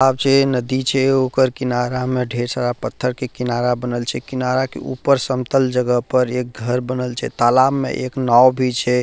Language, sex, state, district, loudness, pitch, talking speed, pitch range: Maithili, male, Bihar, Purnia, -18 LUFS, 125 Hz, 200 wpm, 125-130 Hz